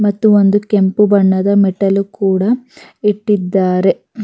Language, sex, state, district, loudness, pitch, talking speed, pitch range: Kannada, female, Karnataka, Raichur, -13 LUFS, 200 Hz, 100 wpm, 190-210 Hz